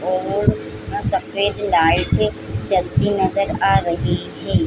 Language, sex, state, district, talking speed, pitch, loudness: Hindi, female, Chhattisgarh, Bilaspur, 105 wpm, 165 Hz, -19 LUFS